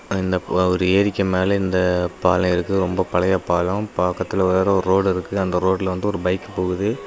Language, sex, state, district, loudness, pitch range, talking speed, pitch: Tamil, male, Tamil Nadu, Kanyakumari, -20 LUFS, 90-95 Hz, 180 wpm, 95 Hz